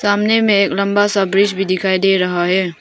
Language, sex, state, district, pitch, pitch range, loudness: Hindi, female, Arunachal Pradesh, Papum Pare, 195 Hz, 190-205 Hz, -15 LUFS